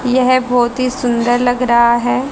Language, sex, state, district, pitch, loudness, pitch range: Hindi, female, Haryana, Rohtak, 245 Hz, -14 LUFS, 240-255 Hz